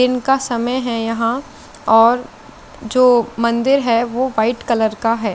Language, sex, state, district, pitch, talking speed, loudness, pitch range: Hindi, female, Chandigarh, Chandigarh, 235 Hz, 155 wpm, -16 LUFS, 230-255 Hz